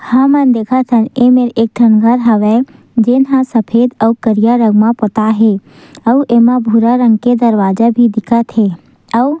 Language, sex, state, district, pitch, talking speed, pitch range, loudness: Chhattisgarhi, female, Chhattisgarh, Sukma, 235 Hz, 170 wpm, 220-245 Hz, -11 LUFS